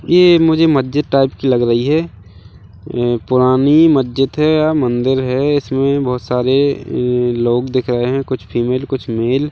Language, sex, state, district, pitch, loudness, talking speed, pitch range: Hindi, male, Chhattisgarh, Bilaspur, 130 Hz, -14 LUFS, 175 wpm, 120-140 Hz